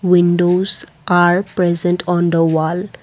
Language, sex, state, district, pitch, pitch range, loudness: English, female, Assam, Kamrup Metropolitan, 175 Hz, 175-180 Hz, -15 LUFS